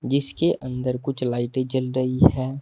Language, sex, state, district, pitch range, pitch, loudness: Hindi, male, Uttar Pradesh, Saharanpur, 125-135 Hz, 130 Hz, -23 LUFS